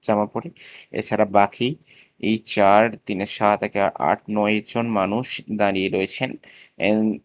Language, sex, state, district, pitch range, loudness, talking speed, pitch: Bengali, male, Tripura, West Tripura, 100-110 Hz, -21 LUFS, 140 wpm, 105 Hz